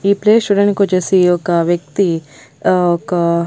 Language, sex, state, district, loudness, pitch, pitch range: Telugu, female, Andhra Pradesh, Annamaya, -14 LUFS, 175 Hz, 170-200 Hz